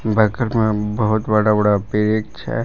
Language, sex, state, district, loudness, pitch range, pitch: Hindi, male, Jharkhand, Palamu, -18 LUFS, 105-110 Hz, 105 Hz